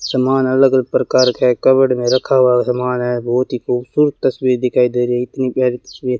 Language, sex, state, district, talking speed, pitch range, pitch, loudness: Hindi, male, Rajasthan, Bikaner, 215 wpm, 125-130 Hz, 125 Hz, -15 LUFS